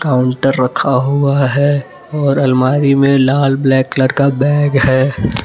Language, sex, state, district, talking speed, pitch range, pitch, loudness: Hindi, male, Jharkhand, Palamu, 145 wpm, 130-140 Hz, 140 Hz, -13 LUFS